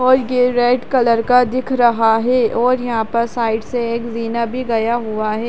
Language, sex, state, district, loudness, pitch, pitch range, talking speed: Hindi, female, Bihar, Jahanabad, -16 LUFS, 235 Hz, 230-250 Hz, 205 wpm